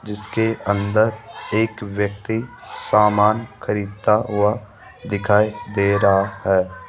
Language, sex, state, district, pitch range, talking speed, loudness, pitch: Hindi, male, Rajasthan, Jaipur, 100-110 Hz, 95 wpm, -20 LUFS, 105 Hz